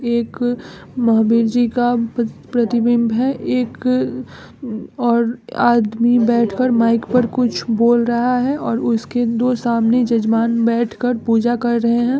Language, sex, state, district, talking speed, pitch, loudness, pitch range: Hindi, female, Bihar, East Champaran, 135 wpm, 235 Hz, -17 LUFS, 230-245 Hz